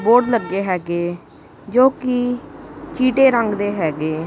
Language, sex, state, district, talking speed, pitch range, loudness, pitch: Punjabi, female, Punjab, Kapurthala, 125 wpm, 175-250 Hz, -18 LUFS, 225 Hz